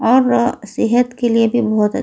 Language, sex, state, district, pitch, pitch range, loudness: Hindi, female, Delhi, New Delhi, 235 Hz, 230-245 Hz, -15 LUFS